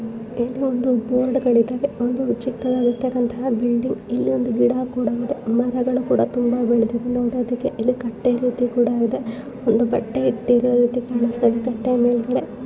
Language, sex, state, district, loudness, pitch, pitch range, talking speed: Kannada, female, Karnataka, Bellary, -20 LUFS, 245 Hz, 235-250 Hz, 135 wpm